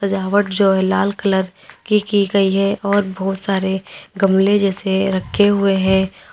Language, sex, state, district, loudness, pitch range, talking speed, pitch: Hindi, female, Uttar Pradesh, Lalitpur, -17 LUFS, 190-200 Hz, 160 wpm, 195 Hz